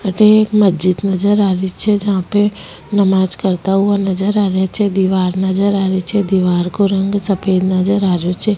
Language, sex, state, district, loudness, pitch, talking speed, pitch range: Rajasthani, female, Rajasthan, Nagaur, -15 LUFS, 195 Hz, 205 wpm, 185-205 Hz